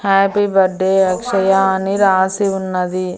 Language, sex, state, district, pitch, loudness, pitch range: Telugu, female, Andhra Pradesh, Annamaya, 190 Hz, -15 LUFS, 185-195 Hz